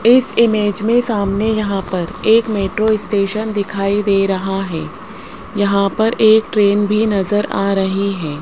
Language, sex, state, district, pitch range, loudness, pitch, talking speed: Hindi, female, Rajasthan, Jaipur, 195-220 Hz, -16 LUFS, 205 Hz, 155 wpm